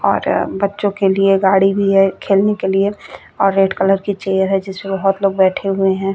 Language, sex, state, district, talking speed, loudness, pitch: Hindi, female, Chhattisgarh, Bastar, 215 wpm, -15 LUFS, 195 Hz